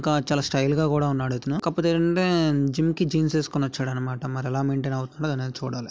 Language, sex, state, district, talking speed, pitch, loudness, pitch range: Telugu, male, Andhra Pradesh, Visakhapatnam, 195 wpm, 140 Hz, -24 LUFS, 130-155 Hz